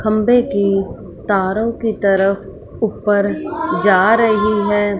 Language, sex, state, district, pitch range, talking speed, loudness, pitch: Hindi, female, Punjab, Fazilka, 200-225 Hz, 110 wpm, -16 LUFS, 210 Hz